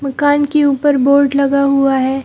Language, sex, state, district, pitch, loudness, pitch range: Hindi, female, Chhattisgarh, Bilaspur, 280 Hz, -13 LUFS, 275-290 Hz